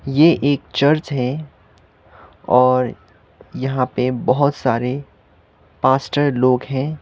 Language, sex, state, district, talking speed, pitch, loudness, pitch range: Hindi, male, Sikkim, Gangtok, 100 wpm, 130 Hz, -18 LUFS, 115-140 Hz